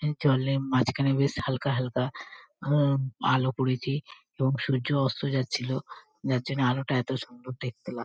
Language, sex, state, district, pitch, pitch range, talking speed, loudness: Bengali, female, West Bengal, Kolkata, 130 Hz, 130-140 Hz, 135 wpm, -28 LUFS